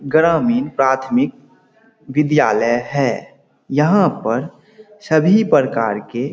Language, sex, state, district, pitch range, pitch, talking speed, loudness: Hindi, male, Bihar, Saharsa, 130-200 Hz, 150 Hz, 95 wpm, -16 LUFS